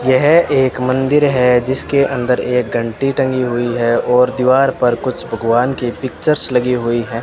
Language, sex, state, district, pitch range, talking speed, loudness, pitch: Hindi, male, Rajasthan, Bikaner, 120-135 Hz, 175 wpm, -15 LUFS, 125 Hz